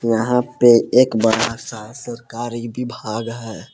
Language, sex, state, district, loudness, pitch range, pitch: Hindi, male, Jharkhand, Palamu, -18 LUFS, 115-125 Hz, 115 Hz